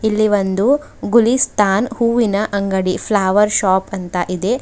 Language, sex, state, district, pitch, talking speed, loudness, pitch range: Kannada, female, Karnataka, Bidar, 205 Hz, 115 wpm, -16 LUFS, 190-230 Hz